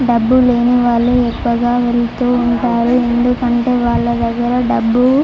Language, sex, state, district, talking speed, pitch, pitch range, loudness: Telugu, female, Andhra Pradesh, Chittoor, 125 wpm, 240 Hz, 235-245 Hz, -14 LUFS